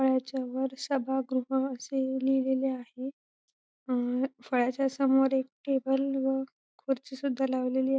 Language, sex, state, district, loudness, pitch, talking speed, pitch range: Marathi, female, Maharashtra, Sindhudurg, -30 LUFS, 265 Hz, 120 wpm, 260-270 Hz